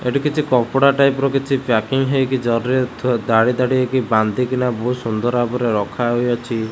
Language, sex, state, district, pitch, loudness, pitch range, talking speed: Odia, male, Odisha, Khordha, 125 Hz, -18 LUFS, 115-130 Hz, 180 wpm